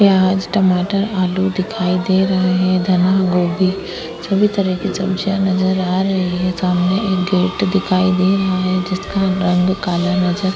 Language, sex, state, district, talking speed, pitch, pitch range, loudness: Hindi, female, Uttar Pradesh, Hamirpur, 165 wpm, 185 Hz, 180-195 Hz, -16 LUFS